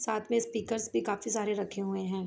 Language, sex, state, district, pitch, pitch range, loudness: Hindi, female, Jharkhand, Sahebganj, 210 Hz, 195-225 Hz, -32 LUFS